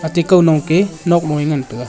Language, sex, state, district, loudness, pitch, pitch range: Wancho, male, Arunachal Pradesh, Longding, -14 LUFS, 160 Hz, 150-170 Hz